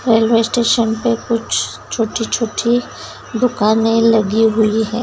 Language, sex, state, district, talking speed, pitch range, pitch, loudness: Hindi, female, Bihar, Begusarai, 105 wpm, 225-235 Hz, 225 Hz, -16 LUFS